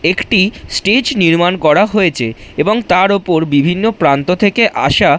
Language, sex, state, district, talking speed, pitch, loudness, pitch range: Bengali, male, West Bengal, Dakshin Dinajpur, 140 wpm, 180 Hz, -12 LUFS, 160-210 Hz